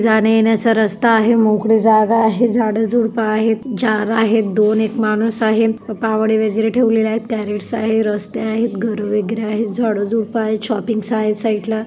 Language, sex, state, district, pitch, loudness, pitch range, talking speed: Marathi, female, Maharashtra, Chandrapur, 220 Hz, -16 LUFS, 215-225 Hz, 165 wpm